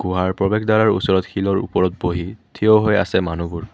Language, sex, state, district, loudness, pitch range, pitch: Assamese, male, Assam, Kamrup Metropolitan, -18 LUFS, 90-105 Hz, 95 Hz